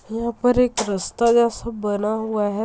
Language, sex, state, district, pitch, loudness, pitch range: Hindi, female, Jharkhand, Sahebganj, 225 Hz, -21 LUFS, 210-235 Hz